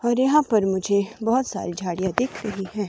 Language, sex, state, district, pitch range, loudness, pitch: Hindi, female, Himachal Pradesh, Shimla, 190-240 Hz, -23 LUFS, 210 Hz